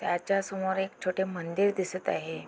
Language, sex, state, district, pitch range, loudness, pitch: Marathi, female, Maharashtra, Aurangabad, 180-195 Hz, -30 LUFS, 190 Hz